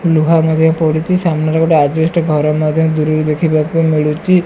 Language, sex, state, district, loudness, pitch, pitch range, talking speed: Odia, female, Odisha, Malkangiri, -13 LUFS, 160 Hz, 155-165 Hz, 150 wpm